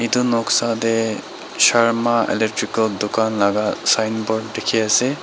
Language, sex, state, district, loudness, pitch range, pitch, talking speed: Nagamese, female, Nagaland, Dimapur, -18 LUFS, 110-115 Hz, 110 Hz, 125 wpm